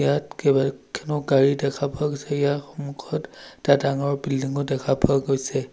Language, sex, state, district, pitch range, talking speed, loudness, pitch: Assamese, male, Assam, Sonitpur, 135-140 Hz, 145 wpm, -23 LUFS, 140 Hz